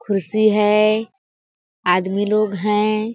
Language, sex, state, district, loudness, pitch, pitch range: Hindi, female, Chhattisgarh, Balrampur, -18 LUFS, 210 Hz, 200-215 Hz